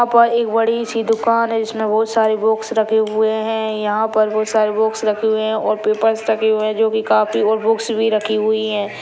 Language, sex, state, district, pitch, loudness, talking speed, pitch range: Hindi, female, Bihar, Saran, 220 Hz, -17 LUFS, 240 wpm, 215-225 Hz